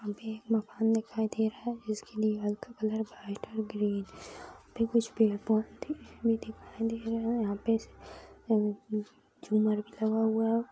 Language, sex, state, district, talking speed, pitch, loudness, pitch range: Hindi, female, Chhattisgarh, Bastar, 175 wpm, 220 Hz, -32 LUFS, 215-225 Hz